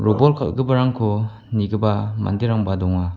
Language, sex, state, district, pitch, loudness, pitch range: Garo, male, Meghalaya, West Garo Hills, 110 Hz, -20 LUFS, 105-120 Hz